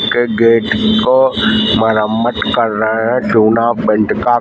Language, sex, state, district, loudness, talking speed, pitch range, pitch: Hindi, male, Bihar, Kaimur, -12 LUFS, 135 wpm, 110-125 Hz, 115 Hz